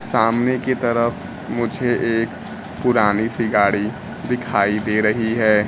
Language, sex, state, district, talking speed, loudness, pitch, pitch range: Hindi, male, Bihar, Kaimur, 125 wpm, -19 LUFS, 115 Hz, 105-125 Hz